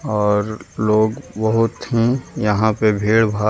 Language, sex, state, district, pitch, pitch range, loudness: Hindi, male, Bihar, Gaya, 110 Hz, 105-115 Hz, -18 LUFS